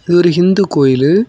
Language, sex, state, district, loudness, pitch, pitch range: Tamil, male, Tamil Nadu, Kanyakumari, -11 LUFS, 175 Hz, 145-190 Hz